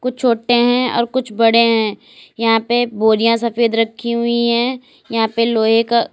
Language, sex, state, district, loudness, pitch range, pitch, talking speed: Hindi, female, Uttar Pradesh, Lalitpur, -16 LUFS, 225-240 Hz, 235 Hz, 165 wpm